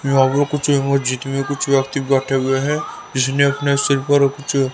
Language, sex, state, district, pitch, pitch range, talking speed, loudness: Hindi, male, Haryana, Rohtak, 140 Hz, 135-140 Hz, 165 wpm, -18 LUFS